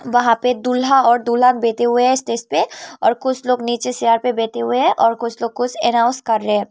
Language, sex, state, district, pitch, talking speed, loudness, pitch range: Hindi, female, Tripura, Unakoti, 240 Hz, 240 wpm, -17 LUFS, 230-250 Hz